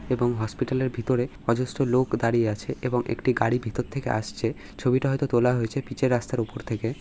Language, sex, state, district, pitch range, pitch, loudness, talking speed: Bengali, male, West Bengal, North 24 Parganas, 115-130 Hz, 125 Hz, -26 LUFS, 195 wpm